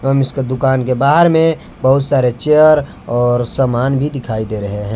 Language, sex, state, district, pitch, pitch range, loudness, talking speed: Hindi, male, Jharkhand, Palamu, 135 Hz, 120-140 Hz, -14 LUFS, 195 wpm